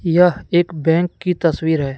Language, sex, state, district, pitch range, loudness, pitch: Hindi, male, Jharkhand, Deoghar, 160-175 Hz, -17 LUFS, 170 Hz